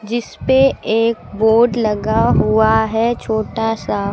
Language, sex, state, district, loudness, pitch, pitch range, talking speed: Hindi, female, Uttar Pradesh, Lucknow, -16 LUFS, 220 Hz, 220-230 Hz, 115 wpm